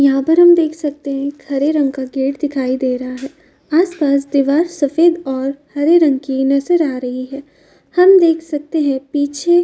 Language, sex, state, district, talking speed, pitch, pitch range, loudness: Hindi, female, Uttar Pradesh, Jyotiba Phule Nagar, 200 wpm, 285 Hz, 275-315 Hz, -15 LUFS